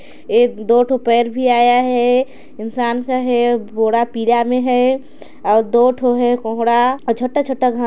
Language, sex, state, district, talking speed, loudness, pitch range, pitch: Hindi, female, Chhattisgarh, Sarguja, 165 wpm, -15 LUFS, 235-255 Hz, 245 Hz